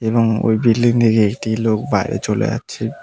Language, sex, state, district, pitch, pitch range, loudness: Bengali, male, West Bengal, Cooch Behar, 110 Hz, 110-115 Hz, -17 LUFS